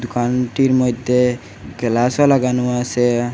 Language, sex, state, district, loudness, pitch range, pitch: Bengali, male, Assam, Hailakandi, -17 LUFS, 120-125 Hz, 125 Hz